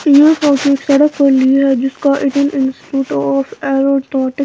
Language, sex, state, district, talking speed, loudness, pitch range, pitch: Hindi, female, Bihar, Patna, 70 wpm, -13 LUFS, 265-285 Hz, 275 Hz